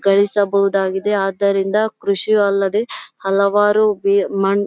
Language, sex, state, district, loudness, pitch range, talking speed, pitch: Kannada, female, Karnataka, Bellary, -17 LUFS, 195-205 Hz, 105 wpm, 200 Hz